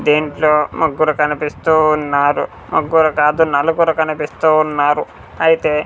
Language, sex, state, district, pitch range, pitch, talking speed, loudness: Telugu, male, Andhra Pradesh, Sri Satya Sai, 150-160 Hz, 155 Hz, 100 wpm, -15 LUFS